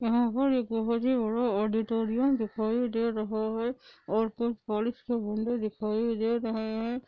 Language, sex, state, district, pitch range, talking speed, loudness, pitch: Hindi, female, Andhra Pradesh, Anantapur, 220-240 Hz, 110 wpm, -29 LUFS, 230 Hz